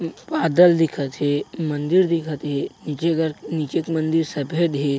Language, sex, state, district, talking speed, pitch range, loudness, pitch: Chhattisgarhi, male, Chhattisgarh, Bilaspur, 155 wpm, 145-165 Hz, -21 LUFS, 160 Hz